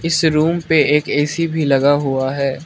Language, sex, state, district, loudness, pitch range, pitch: Hindi, male, Arunachal Pradesh, Lower Dibang Valley, -16 LUFS, 140-160 Hz, 150 Hz